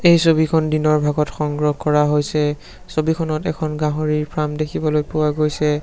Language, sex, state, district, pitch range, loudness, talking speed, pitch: Assamese, male, Assam, Sonitpur, 150-155 Hz, -19 LUFS, 145 wpm, 150 Hz